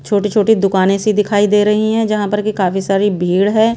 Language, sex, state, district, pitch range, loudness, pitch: Hindi, female, Bihar, Kaimur, 195-215 Hz, -14 LUFS, 205 Hz